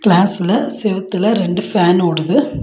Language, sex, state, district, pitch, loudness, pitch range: Tamil, female, Tamil Nadu, Nilgiris, 190 Hz, -15 LUFS, 175-210 Hz